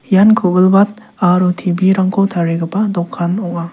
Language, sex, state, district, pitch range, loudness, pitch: Garo, male, Meghalaya, South Garo Hills, 175-195 Hz, -14 LUFS, 185 Hz